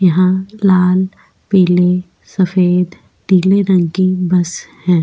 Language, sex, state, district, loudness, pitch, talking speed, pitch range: Hindi, female, Goa, North and South Goa, -14 LUFS, 185 Hz, 105 wpm, 180-190 Hz